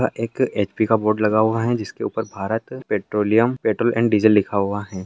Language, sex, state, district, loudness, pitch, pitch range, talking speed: Hindi, male, Bihar, Sitamarhi, -20 LUFS, 110 Hz, 105-115 Hz, 200 wpm